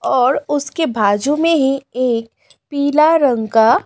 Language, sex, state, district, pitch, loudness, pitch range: Hindi, female, Delhi, New Delhi, 270 Hz, -15 LUFS, 235-290 Hz